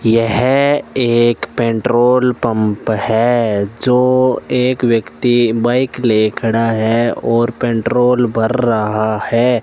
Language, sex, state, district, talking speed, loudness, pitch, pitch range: Hindi, male, Rajasthan, Bikaner, 105 wpm, -14 LUFS, 120 Hz, 115-125 Hz